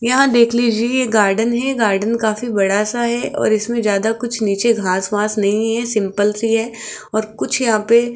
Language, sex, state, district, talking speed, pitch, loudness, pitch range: Hindi, female, Rajasthan, Jaipur, 205 wpm, 225 Hz, -17 LUFS, 210-235 Hz